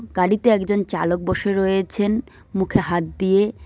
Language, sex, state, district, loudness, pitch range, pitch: Bengali, female, West Bengal, Cooch Behar, -20 LUFS, 185-210 Hz, 195 Hz